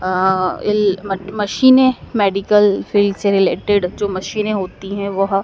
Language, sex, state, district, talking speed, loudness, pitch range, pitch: Hindi, female, Madhya Pradesh, Dhar, 145 wpm, -16 LUFS, 195-210 Hz, 200 Hz